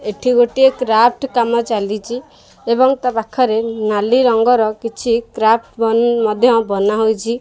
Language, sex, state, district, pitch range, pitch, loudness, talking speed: Odia, male, Odisha, Khordha, 220-245 Hz, 230 Hz, -15 LUFS, 120 wpm